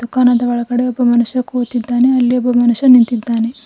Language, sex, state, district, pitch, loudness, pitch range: Kannada, female, Karnataka, Bidar, 245 Hz, -13 LUFS, 240-250 Hz